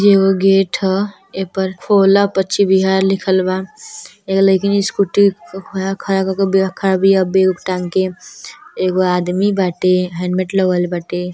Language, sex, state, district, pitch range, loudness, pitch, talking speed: Bhojpuri, male, Uttar Pradesh, Deoria, 185-195 Hz, -15 LUFS, 190 Hz, 150 wpm